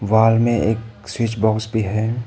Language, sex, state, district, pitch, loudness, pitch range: Hindi, male, Arunachal Pradesh, Papum Pare, 110 Hz, -19 LUFS, 110-115 Hz